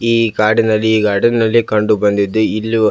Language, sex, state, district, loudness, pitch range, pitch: Kannada, male, Karnataka, Belgaum, -14 LUFS, 105-115 Hz, 110 Hz